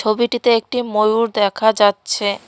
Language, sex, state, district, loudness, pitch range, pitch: Bengali, female, West Bengal, Cooch Behar, -16 LUFS, 205-235 Hz, 220 Hz